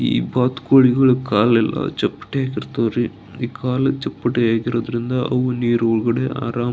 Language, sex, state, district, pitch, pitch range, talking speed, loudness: Kannada, male, Karnataka, Belgaum, 120 Hz, 115-130 Hz, 115 wpm, -19 LUFS